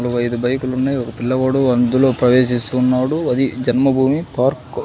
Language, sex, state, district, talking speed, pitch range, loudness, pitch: Telugu, male, Andhra Pradesh, Sri Satya Sai, 150 wpm, 125-135 Hz, -17 LUFS, 130 Hz